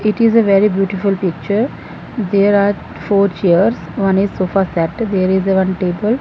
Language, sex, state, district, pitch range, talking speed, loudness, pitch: English, female, Punjab, Fazilka, 190-210 Hz, 185 wpm, -15 LUFS, 195 Hz